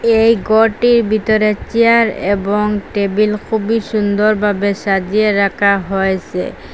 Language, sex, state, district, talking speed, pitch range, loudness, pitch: Bengali, female, Assam, Hailakandi, 100 wpm, 200-220 Hz, -14 LUFS, 210 Hz